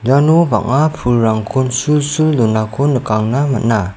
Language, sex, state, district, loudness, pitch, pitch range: Garo, male, Meghalaya, South Garo Hills, -14 LUFS, 130 Hz, 110-145 Hz